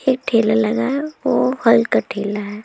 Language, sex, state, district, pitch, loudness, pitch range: Hindi, female, Uttar Pradesh, Muzaffarnagar, 230 Hz, -18 LUFS, 215-255 Hz